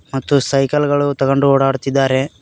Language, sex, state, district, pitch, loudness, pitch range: Kannada, male, Karnataka, Koppal, 135 Hz, -15 LUFS, 135-140 Hz